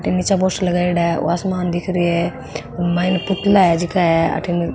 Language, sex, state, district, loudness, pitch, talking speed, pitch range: Marwari, female, Rajasthan, Nagaur, -18 LUFS, 175 Hz, 215 wpm, 170-185 Hz